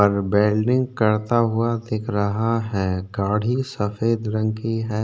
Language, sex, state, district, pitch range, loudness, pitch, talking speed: Hindi, male, Uttarakhand, Tehri Garhwal, 105-115 Hz, -22 LUFS, 110 Hz, 145 wpm